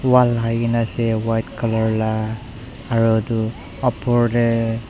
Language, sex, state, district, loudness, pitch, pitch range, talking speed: Nagamese, male, Nagaland, Dimapur, -20 LUFS, 115 Hz, 110-120 Hz, 85 wpm